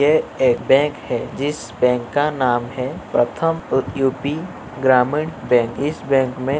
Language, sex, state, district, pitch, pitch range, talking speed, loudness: Hindi, male, Uttar Pradesh, Jyotiba Phule Nagar, 135 Hz, 125-150 Hz, 165 wpm, -19 LUFS